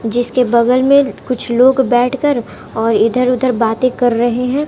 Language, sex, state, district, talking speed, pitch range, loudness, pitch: Hindi, female, Bihar, West Champaran, 165 wpm, 235-260 Hz, -13 LUFS, 250 Hz